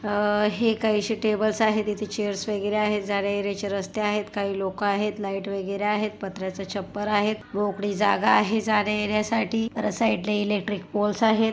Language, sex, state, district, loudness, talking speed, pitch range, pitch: Marathi, female, Maharashtra, Pune, -25 LUFS, 155 wpm, 200-215 Hz, 210 Hz